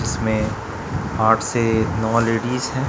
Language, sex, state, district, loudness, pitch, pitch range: Hindi, male, Chhattisgarh, Raipur, -20 LUFS, 110 Hz, 110-115 Hz